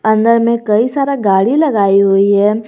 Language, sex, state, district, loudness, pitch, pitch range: Hindi, male, Jharkhand, Garhwa, -12 LUFS, 220 Hz, 200-235 Hz